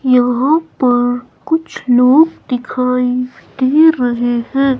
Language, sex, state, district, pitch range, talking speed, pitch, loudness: Hindi, female, Himachal Pradesh, Shimla, 245-275 Hz, 100 wpm, 250 Hz, -14 LUFS